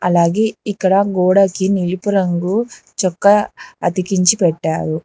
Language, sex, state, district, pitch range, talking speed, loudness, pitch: Telugu, female, Telangana, Hyderabad, 175-200 Hz, 95 wpm, -16 LUFS, 190 Hz